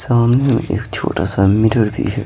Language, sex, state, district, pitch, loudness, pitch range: Hindi, male, Bihar, Patna, 110 Hz, -15 LUFS, 100-120 Hz